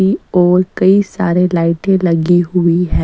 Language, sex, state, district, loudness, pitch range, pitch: Hindi, female, Chandigarh, Chandigarh, -13 LUFS, 170-190 Hz, 180 Hz